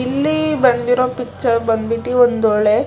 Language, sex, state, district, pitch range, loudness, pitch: Kannada, female, Karnataka, Shimoga, 230-255 Hz, -16 LUFS, 245 Hz